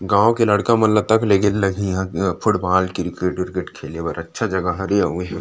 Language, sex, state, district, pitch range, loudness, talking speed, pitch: Chhattisgarhi, male, Chhattisgarh, Rajnandgaon, 90-105 Hz, -19 LUFS, 220 wpm, 95 Hz